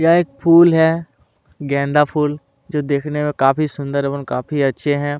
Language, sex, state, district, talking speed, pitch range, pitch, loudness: Hindi, male, Chhattisgarh, Kabirdham, 175 wpm, 140-155 Hz, 145 Hz, -17 LUFS